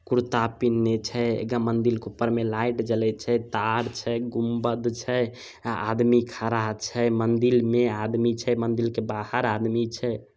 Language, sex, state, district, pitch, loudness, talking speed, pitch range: Maithili, male, Bihar, Samastipur, 115 Hz, -25 LUFS, 150 wpm, 115-120 Hz